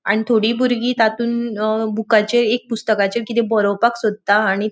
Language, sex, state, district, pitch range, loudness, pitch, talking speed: Konkani, female, Goa, North and South Goa, 215-235 Hz, -17 LUFS, 225 Hz, 165 wpm